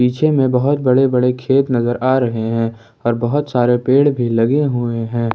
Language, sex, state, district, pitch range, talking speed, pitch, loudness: Hindi, male, Jharkhand, Ranchi, 120-135 Hz, 215 wpm, 125 Hz, -16 LUFS